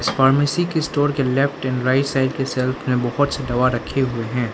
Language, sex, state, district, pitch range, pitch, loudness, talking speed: Hindi, male, Arunachal Pradesh, Lower Dibang Valley, 125-140 Hz, 130 Hz, -20 LUFS, 240 wpm